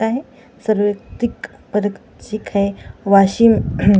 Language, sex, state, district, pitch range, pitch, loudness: Marathi, female, Maharashtra, Washim, 200-230 Hz, 215 Hz, -17 LUFS